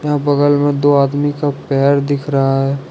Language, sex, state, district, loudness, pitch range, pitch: Hindi, male, Jharkhand, Ranchi, -15 LUFS, 140-145 Hz, 145 Hz